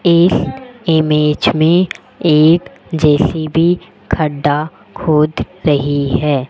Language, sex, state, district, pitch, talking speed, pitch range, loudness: Hindi, female, Rajasthan, Jaipur, 155 Hz, 85 wpm, 150-170 Hz, -14 LUFS